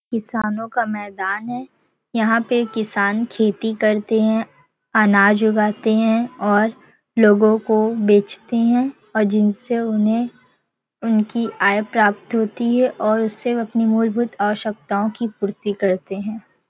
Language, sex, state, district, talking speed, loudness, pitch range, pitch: Hindi, female, Uttar Pradesh, Varanasi, 125 wpm, -19 LUFS, 210-230 Hz, 220 Hz